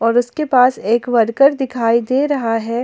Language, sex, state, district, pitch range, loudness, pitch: Hindi, female, Jharkhand, Ranchi, 230-265 Hz, -15 LUFS, 245 Hz